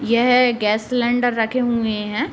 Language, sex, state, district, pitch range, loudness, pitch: Hindi, female, Uttar Pradesh, Deoria, 220-250 Hz, -18 LUFS, 240 Hz